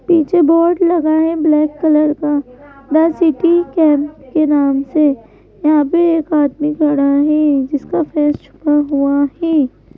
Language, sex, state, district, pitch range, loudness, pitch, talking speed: Hindi, female, Madhya Pradesh, Bhopal, 290-325 Hz, -14 LUFS, 300 Hz, 145 wpm